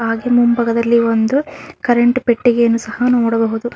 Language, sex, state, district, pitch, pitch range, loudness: Kannada, female, Karnataka, Bellary, 235 Hz, 230-245 Hz, -15 LUFS